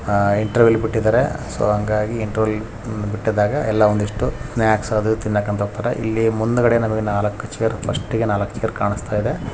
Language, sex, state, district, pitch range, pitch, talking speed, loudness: Kannada, male, Karnataka, Raichur, 105-115 Hz, 110 Hz, 115 wpm, -20 LUFS